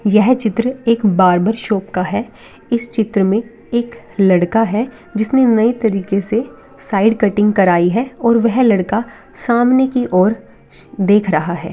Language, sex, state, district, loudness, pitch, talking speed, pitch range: Hindi, female, Bihar, East Champaran, -15 LUFS, 220 Hz, 155 wpm, 195-235 Hz